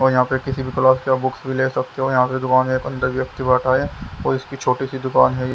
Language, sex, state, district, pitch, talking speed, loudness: Hindi, male, Haryana, Jhajjar, 130 Hz, 280 wpm, -19 LUFS